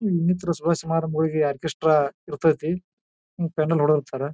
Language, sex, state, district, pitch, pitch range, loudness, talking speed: Kannada, male, Karnataka, Bijapur, 160 Hz, 150-170 Hz, -23 LUFS, 110 wpm